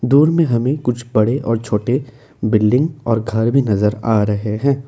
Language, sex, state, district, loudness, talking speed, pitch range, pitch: Hindi, male, Assam, Kamrup Metropolitan, -17 LUFS, 185 wpm, 110-135 Hz, 120 Hz